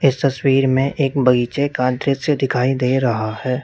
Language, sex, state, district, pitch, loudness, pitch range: Hindi, male, Uttar Pradesh, Lalitpur, 135 Hz, -18 LUFS, 125-140 Hz